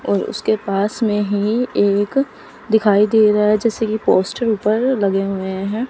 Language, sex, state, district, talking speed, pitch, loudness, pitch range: Hindi, female, Chandigarh, Chandigarh, 175 wpm, 210 Hz, -17 LUFS, 205-225 Hz